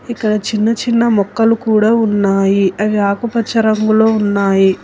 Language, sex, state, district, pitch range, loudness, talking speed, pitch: Telugu, female, Telangana, Hyderabad, 200-225 Hz, -13 LUFS, 125 wpm, 215 Hz